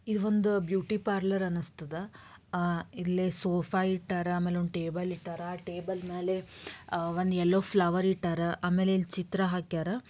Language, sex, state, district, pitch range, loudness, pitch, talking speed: Kannada, female, Karnataka, Dharwad, 175-190 Hz, -31 LUFS, 180 Hz, 145 wpm